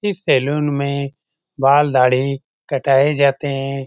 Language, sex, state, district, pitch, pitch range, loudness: Hindi, male, Bihar, Lakhisarai, 140 Hz, 135-145 Hz, -17 LUFS